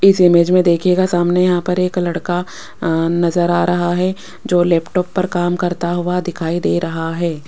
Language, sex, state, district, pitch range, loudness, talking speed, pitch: Hindi, female, Rajasthan, Jaipur, 170-180 Hz, -16 LUFS, 195 wpm, 175 Hz